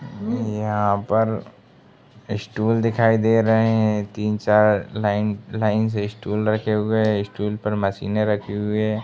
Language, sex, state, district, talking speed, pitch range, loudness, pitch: Hindi, male, Uttar Pradesh, Gorakhpur, 140 wpm, 105-110 Hz, -21 LUFS, 105 Hz